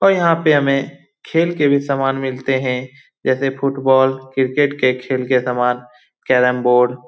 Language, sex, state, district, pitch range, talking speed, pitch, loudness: Hindi, male, Bihar, Lakhisarai, 125-140 Hz, 170 wpm, 130 Hz, -17 LUFS